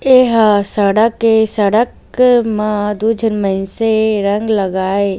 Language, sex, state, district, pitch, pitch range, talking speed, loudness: Chhattisgarhi, female, Chhattisgarh, Raigarh, 215 Hz, 205-225 Hz, 125 wpm, -13 LUFS